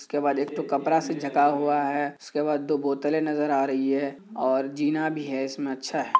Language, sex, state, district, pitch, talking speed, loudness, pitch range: Hindi, male, Bihar, Kishanganj, 145 Hz, 230 wpm, -26 LUFS, 140-150 Hz